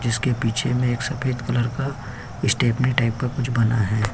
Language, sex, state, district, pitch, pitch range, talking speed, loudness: Hindi, male, Uttar Pradesh, Hamirpur, 120 Hz, 115-130 Hz, 190 wpm, -22 LUFS